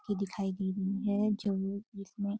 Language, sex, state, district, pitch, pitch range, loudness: Hindi, female, Uttarakhand, Uttarkashi, 200 Hz, 195-205 Hz, -34 LUFS